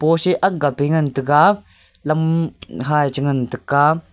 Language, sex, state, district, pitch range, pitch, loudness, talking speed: Wancho, male, Arunachal Pradesh, Longding, 140-165 Hz, 150 Hz, -18 LUFS, 160 wpm